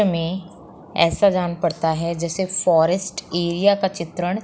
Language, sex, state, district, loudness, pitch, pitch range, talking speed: Hindi, female, Uttar Pradesh, Muzaffarnagar, -20 LUFS, 175 Hz, 170-190 Hz, 150 wpm